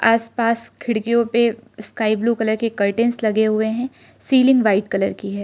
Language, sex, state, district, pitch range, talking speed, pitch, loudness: Hindi, female, Arunachal Pradesh, Lower Dibang Valley, 215-235 Hz, 175 wpm, 230 Hz, -19 LUFS